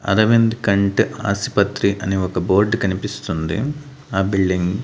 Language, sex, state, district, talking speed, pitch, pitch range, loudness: Telugu, male, Andhra Pradesh, Annamaya, 110 wpm, 100 Hz, 95-110 Hz, -19 LUFS